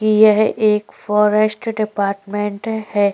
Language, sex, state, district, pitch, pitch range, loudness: Hindi, female, Goa, North and South Goa, 210 Hz, 205-215 Hz, -17 LUFS